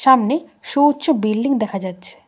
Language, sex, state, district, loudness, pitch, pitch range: Bengali, female, West Bengal, Cooch Behar, -18 LUFS, 260 Hz, 215-290 Hz